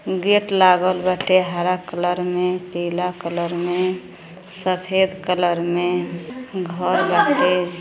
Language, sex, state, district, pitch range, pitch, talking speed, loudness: Bhojpuri, female, Uttar Pradesh, Gorakhpur, 175-185 Hz, 180 Hz, 110 wpm, -20 LUFS